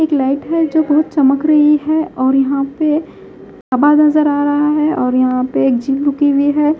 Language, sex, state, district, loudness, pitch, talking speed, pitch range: Hindi, female, Haryana, Jhajjar, -14 LUFS, 290 Hz, 205 wpm, 270-305 Hz